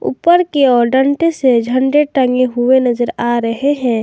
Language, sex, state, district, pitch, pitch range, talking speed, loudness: Hindi, female, Jharkhand, Garhwa, 260 Hz, 240-285 Hz, 180 wpm, -13 LUFS